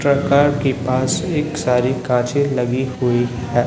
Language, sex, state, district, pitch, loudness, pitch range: Hindi, male, Chhattisgarh, Raipur, 130 Hz, -18 LUFS, 125-140 Hz